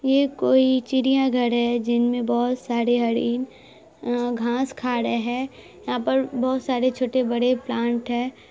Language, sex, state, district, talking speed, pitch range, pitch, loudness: Hindi, female, Bihar, Saharsa, 160 wpm, 240-260 Hz, 245 Hz, -22 LUFS